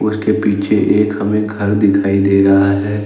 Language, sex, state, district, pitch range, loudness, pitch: Hindi, male, Jharkhand, Ranchi, 100-105 Hz, -14 LUFS, 100 Hz